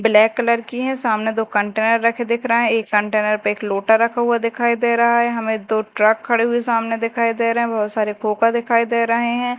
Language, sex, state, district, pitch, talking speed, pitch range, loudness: Hindi, female, Madhya Pradesh, Dhar, 230 Hz, 245 wpm, 220-235 Hz, -18 LUFS